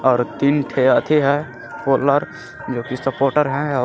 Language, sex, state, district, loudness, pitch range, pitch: Hindi, male, Jharkhand, Garhwa, -18 LUFS, 130-145 Hz, 140 Hz